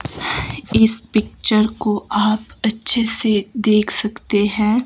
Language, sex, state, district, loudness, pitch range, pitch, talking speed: Hindi, male, Himachal Pradesh, Shimla, -17 LUFS, 210-225 Hz, 215 Hz, 110 wpm